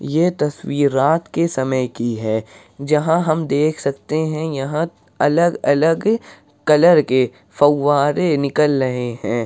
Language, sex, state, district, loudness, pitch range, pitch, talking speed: Hindi, male, Uttar Pradesh, Hamirpur, -18 LUFS, 130-160 Hz, 145 Hz, 135 wpm